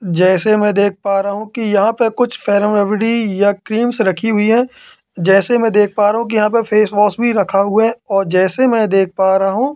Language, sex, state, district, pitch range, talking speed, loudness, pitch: Hindi, male, Madhya Pradesh, Katni, 195-225 Hz, 230 wpm, -14 LUFS, 210 Hz